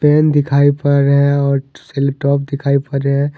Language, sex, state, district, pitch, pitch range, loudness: Hindi, male, Jharkhand, Deoghar, 140 Hz, 140-145 Hz, -14 LUFS